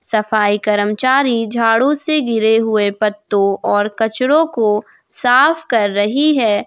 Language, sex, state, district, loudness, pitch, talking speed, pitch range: Hindi, female, Jharkhand, Ranchi, -15 LUFS, 225 Hz, 125 wpm, 210-255 Hz